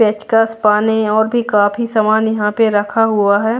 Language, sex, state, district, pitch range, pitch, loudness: Hindi, female, Haryana, Jhajjar, 210-225 Hz, 220 Hz, -14 LUFS